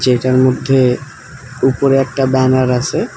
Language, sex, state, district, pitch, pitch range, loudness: Bengali, male, West Bengal, Alipurduar, 130 Hz, 130-135 Hz, -14 LUFS